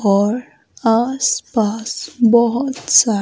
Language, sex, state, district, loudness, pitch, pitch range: Hindi, female, Himachal Pradesh, Shimla, -16 LUFS, 230 Hz, 220-250 Hz